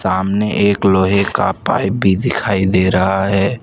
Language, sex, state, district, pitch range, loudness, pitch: Hindi, male, Gujarat, Valsad, 95-100 Hz, -15 LUFS, 95 Hz